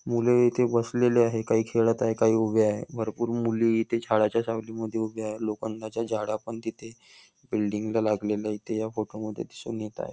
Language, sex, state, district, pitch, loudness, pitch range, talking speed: Marathi, male, Maharashtra, Nagpur, 110 Hz, -27 LUFS, 110-115 Hz, 175 wpm